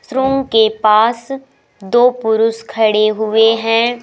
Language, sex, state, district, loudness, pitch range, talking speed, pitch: Hindi, female, Madhya Pradesh, Umaria, -13 LUFS, 220-245 Hz, 135 wpm, 225 Hz